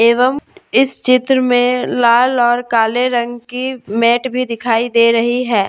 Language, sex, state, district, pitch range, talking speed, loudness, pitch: Hindi, female, Jharkhand, Deoghar, 235-255 Hz, 160 wpm, -14 LUFS, 245 Hz